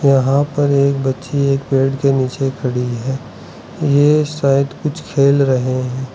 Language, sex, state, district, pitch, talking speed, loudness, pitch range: Hindi, male, Arunachal Pradesh, Lower Dibang Valley, 135 Hz, 155 wpm, -16 LUFS, 130-140 Hz